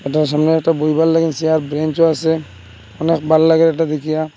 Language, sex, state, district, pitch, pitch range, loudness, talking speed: Bengali, male, Assam, Hailakandi, 160 Hz, 150-160 Hz, -15 LUFS, 165 wpm